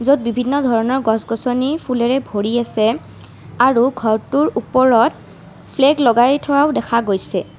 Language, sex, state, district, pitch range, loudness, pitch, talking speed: Assamese, female, Assam, Kamrup Metropolitan, 230-270 Hz, -16 LUFS, 245 Hz, 125 wpm